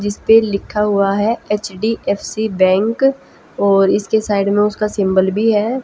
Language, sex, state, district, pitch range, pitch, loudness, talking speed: Hindi, female, Haryana, Jhajjar, 200-220 Hz, 210 Hz, -15 LUFS, 145 wpm